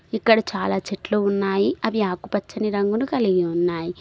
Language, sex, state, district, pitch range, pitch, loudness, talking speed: Telugu, female, Telangana, Mahabubabad, 190-220 Hz, 200 Hz, -22 LUFS, 135 wpm